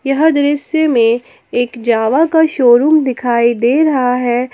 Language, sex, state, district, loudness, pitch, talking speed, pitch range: Hindi, female, Jharkhand, Palamu, -13 LUFS, 250 Hz, 145 wpm, 240-300 Hz